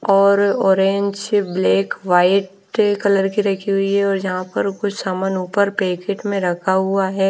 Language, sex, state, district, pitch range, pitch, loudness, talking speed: Hindi, female, Punjab, Fazilka, 190-200 Hz, 195 Hz, -18 LUFS, 170 wpm